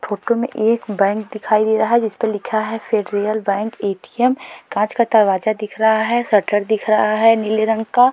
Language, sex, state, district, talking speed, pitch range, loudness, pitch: Hindi, female, Uttar Pradesh, Jalaun, 205 wpm, 210-225 Hz, -17 LUFS, 215 Hz